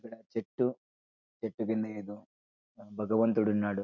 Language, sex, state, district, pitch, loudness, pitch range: Telugu, male, Andhra Pradesh, Anantapur, 105 Hz, -32 LUFS, 80-115 Hz